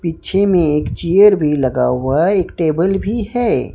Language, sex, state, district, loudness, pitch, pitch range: Hindi, male, Odisha, Sambalpur, -15 LUFS, 170 Hz, 150-200 Hz